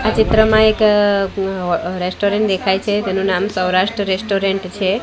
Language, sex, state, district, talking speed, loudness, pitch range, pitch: Gujarati, female, Gujarat, Gandhinagar, 165 wpm, -16 LUFS, 190-210 Hz, 195 Hz